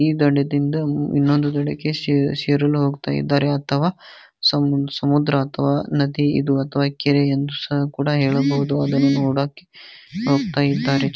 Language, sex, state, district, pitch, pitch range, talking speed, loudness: Kannada, male, Karnataka, Bijapur, 140 Hz, 140-145 Hz, 120 wpm, -20 LUFS